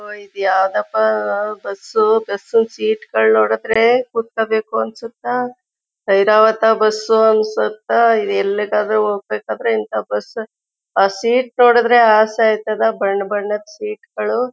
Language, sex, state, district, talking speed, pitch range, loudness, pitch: Kannada, female, Karnataka, Chamarajanagar, 90 wpm, 205-230 Hz, -16 LUFS, 215 Hz